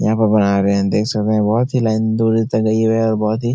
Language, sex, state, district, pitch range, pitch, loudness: Hindi, male, Bihar, Supaul, 105-110 Hz, 110 Hz, -16 LUFS